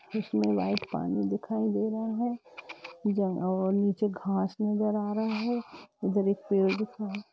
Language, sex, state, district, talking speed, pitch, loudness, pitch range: Hindi, female, Jharkhand, Jamtara, 145 wpm, 205 Hz, -30 LUFS, 195-220 Hz